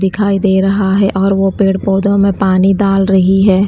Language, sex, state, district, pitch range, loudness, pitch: Hindi, female, Bihar, Kaimur, 190-200 Hz, -12 LUFS, 195 Hz